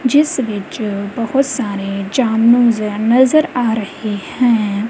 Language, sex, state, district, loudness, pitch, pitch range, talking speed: Punjabi, female, Punjab, Kapurthala, -15 LUFS, 230 Hz, 210-255 Hz, 100 wpm